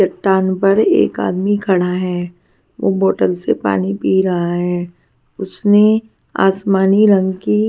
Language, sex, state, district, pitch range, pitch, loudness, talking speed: Hindi, female, Punjab, Pathankot, 155-195 Hz, 185 Hz, -15 LUFS, 130 wpm